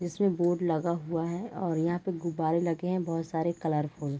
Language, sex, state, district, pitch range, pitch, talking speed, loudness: Hindi, female, Chhattisgarh, Raigarh, 165-175 Hz, 170 Hz, 215 wpm, -30 LUFS